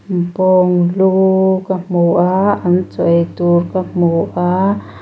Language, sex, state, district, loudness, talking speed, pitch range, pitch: Mizo, female, Mizoram, Aizawl, -14 LUFS, 145 wpm, 175-190 Hz, 180 Hz